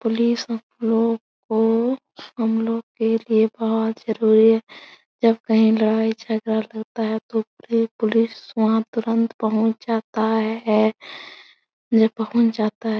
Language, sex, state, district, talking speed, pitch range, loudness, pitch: Hindi, female, Bihar, Supaul, 115 wpm, 220-230 Hz, -21 LUFS, 225 Hz